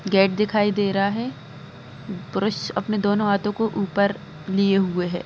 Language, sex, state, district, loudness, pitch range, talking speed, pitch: Hindi, female, Bihar, East Champaran, -22 LUFS, 180-205 Hz, 160 wpm, 200 Hz